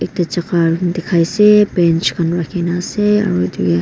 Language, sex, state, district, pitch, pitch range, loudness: Nagamese, female, Nagaland, Kohima, 175 Hz, 165-185 Hz, -15 LUFS